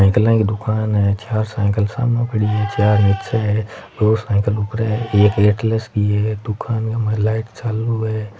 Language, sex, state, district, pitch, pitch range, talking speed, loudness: Marwari, male, Rajasthan, Nagaur, 110 Hz, 105-110 Hz, 185 wpm, -18 LUFS